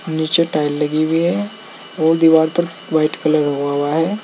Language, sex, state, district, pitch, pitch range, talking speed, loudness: Hindi, male, Uttar Pradesh, Saharanpur, 160 Hz, 155-170 Hz, 185 wpm, -17 LUFS